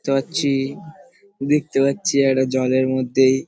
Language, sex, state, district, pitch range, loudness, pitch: Bengali, male, West Bengal, Paschim Medinipur, 130-150 Hz, -19 LUFS, 135 Hz